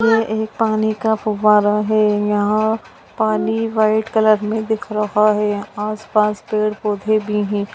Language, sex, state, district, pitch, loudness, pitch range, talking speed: Hindi, female, Bihar, Lakhisarai, 215 Hz, -18 LUFS, 210-220 Hz, 140 wpm